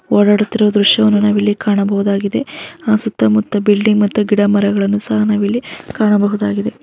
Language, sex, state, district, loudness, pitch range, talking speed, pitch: Kannada, female, Karnataka, Mysore, -14 LUFS, 205-215 Hz, 125 wpm, 205 Hz